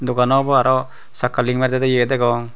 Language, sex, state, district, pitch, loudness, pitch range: Chakma, male, Tripura, Unakoti, 125 Hz, -17 LUFS, 125-130 Hz